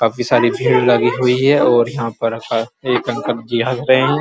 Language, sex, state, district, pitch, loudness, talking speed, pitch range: Hindi, male, Uttar Pradesh, Muzaffarnagar, 120 Hz, -16 LUFS, 215 wpm, 115-130 Hz